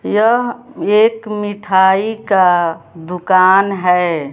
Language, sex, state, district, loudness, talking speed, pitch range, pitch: Hindi, female, Bihar, West Champaran, -14 LUFS, 85 wpm, 180-210 Hz, 195 Hz